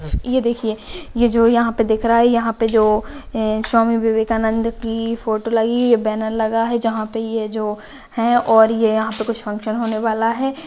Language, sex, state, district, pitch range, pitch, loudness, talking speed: Hindi, female, Rajasthan, Nagaur, 220-230 Hz, 225 Hz, -18 LUFS, 190 wpm